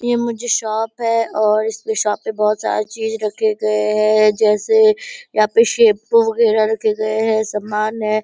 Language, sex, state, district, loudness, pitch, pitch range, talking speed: Hindi, female, Bihar, Purnia, -16 LUFS, 220 Hz, 215-230 Hz, 180 wpm